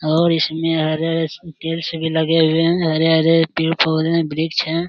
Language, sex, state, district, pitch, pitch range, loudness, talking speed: Hindi, male, Bihar, Jamui, 165 Hz, 160-165 Hz, -17 LUFS, 185 wpm